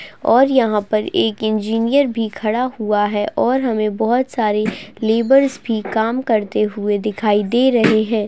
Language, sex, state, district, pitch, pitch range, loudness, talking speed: Hindi, female, West Bengal, Dakshin Dinajpur, 220 Hz, 215-245 Hz, -17 LUFS, 160 wpm